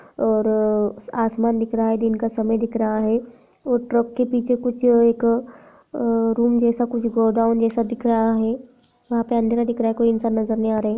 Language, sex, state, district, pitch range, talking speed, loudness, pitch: Hindi, female, Jharkhand, Jamtara, 225-240 Hz, 220 wpm, -20 LUFS, 230 Hz